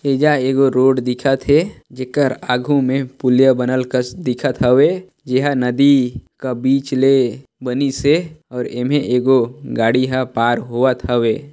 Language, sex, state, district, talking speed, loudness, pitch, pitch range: Chhattisgarhi, male, Chhattisgarh, Sarguja, 140 wpm, -16 LUFS, 130 Hz, 125-140 Hz